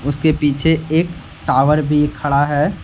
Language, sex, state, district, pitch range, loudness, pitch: Hindi, male, Jharkhand, Deoghar, 145-160 Hz, -16 LUFS, 150 Hz